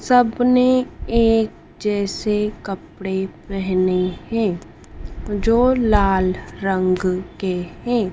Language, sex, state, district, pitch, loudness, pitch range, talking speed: Hindi, female, Madhya Pradesh, Dhar, 195 Hz, -20 LUFS, 185-225 Hz, 80 wpm